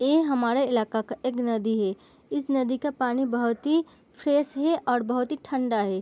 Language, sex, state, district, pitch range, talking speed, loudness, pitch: Hindi, female, Bihar, Gopalganj, 230-285 Hz, 200 wpm, -26 LUFS, 255 Hz